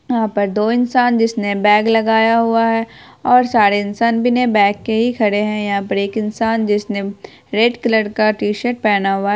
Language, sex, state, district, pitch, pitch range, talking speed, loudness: Hindi, female, Bihar, Araria, 220 Hz, 205-230 Hz, 180 wpm, -16 LUFS